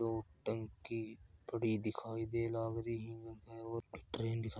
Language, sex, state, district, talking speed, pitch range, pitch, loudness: Marwari, male, Rajasthan, Churu, 145 wpm, 110-115 Hz, 115 Hz, -42 LUFS